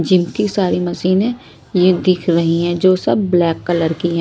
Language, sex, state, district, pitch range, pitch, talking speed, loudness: Hindi, female, Maharashtra, Mumbai Suburban, 170-185 Hz, 180 Hz, 200 wpm, -16 LUFS